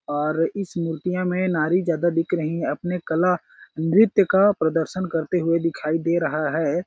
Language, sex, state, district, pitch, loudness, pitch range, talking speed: Hindi, male, Chhattisgarh, Balrampur, 170 Hz, -22 LUFS, 160-180 Hz, 175 wpm